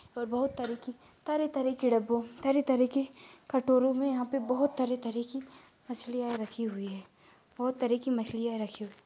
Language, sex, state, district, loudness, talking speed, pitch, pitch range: Hindi, female, Maharashtra, Dhule, -32 LUFS, 190 wpm, 250 Hz, 235-265 Hz